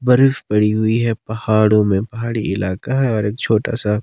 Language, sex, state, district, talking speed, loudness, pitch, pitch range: Hindi, male, Himachal Pradesh, Shimla, 195 wpm, -17 LUFS, 110 Hz, 105-115 Hz